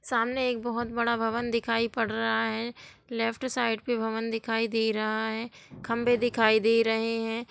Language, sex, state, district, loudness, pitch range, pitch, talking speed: Hindi, female, Bihar, Gopalganj, -28 LUFS, 225-235 Hz, 230 Hz, 175 wpm